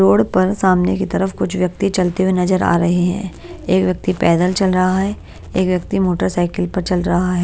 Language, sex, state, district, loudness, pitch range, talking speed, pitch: Hindi, female, Bihar, Patna, -17 LUFS, 175-190 Hz, 210 wpm, 185 Hz